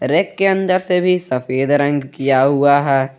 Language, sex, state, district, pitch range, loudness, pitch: Hindi, male, Jharkhand, Garhwa, 135-180 Hz, -16 LUFS, 140 Hz